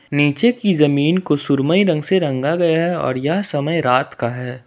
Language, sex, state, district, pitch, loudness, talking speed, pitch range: Hindi, male, Jharkhand, Ranchi, 150 Hz, -17 LUFS, 205 wpm, 140-175 Hz